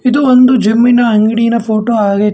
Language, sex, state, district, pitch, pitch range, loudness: Kannada, male, Karnataka, Bangalore, 230 Hz, 215-250 Hz, -10 LUFS